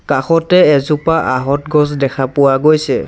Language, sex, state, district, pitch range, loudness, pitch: Assamese, male, Assam, Sonitpur, 135-155 Hz, -13 LUFS, 145 Hz